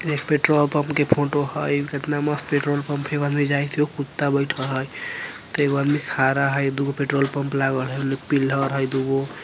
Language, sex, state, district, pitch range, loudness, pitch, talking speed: Bajjika, male, Bihar, Vaishali, 135-145 Hz, -22 LUFS, 140 Hz, 215 wpm